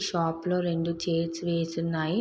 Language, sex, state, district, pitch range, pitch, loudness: Telugu, female, Andhra Pradesh, Srikakulam, 165-175 Hz, 170 Hz, -29 LUFS